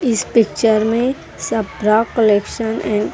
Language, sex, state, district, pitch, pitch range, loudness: Hindi, female, Haryana, Rohtak, 220 Hz, 210-230 Hz, -17 LUFS